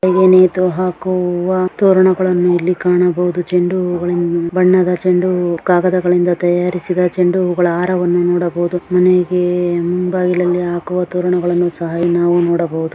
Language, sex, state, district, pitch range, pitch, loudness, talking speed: Kannada, female, Karnataka, Dharwad, 175-180 Hz, 180 Hz, -14 LUFS, 105 wpm